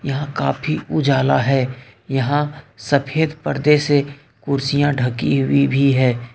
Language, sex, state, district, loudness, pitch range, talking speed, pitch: Hindi, male, Jharkhand, Ranchi, -18 LUFS, 130-145 Hz, 125 wpm, 140 Hz